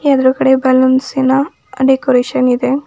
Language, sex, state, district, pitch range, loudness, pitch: Kannada, female, Karnataka, Bidar, 260-270 Hz, -12 LUFS, 265 Hz